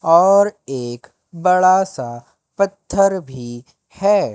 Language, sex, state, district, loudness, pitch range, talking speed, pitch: Hindi, male, Madhya Pradesh, Katni, -17 LUFS, 130-195 Hz, 95 wpm, 185 Hz